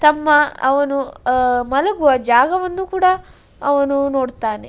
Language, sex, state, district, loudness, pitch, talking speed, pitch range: Kannada, female, Karnataka, Dakshina Kannada, -16 LUFS, 280 Hz, 100 wpm, 255-300 Hz